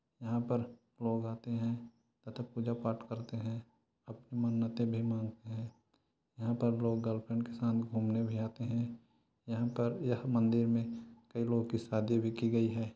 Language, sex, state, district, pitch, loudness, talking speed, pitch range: Hindi, male, Chhattisgarh, Korba, 115 Hz, -36 LUFS, 175 wpm, 115-120 Hz